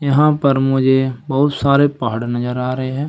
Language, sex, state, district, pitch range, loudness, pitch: Hindi, male, Uttar Pradesh, Saharanpur, 130-140 Hz, -16 LUFS, 135 Hz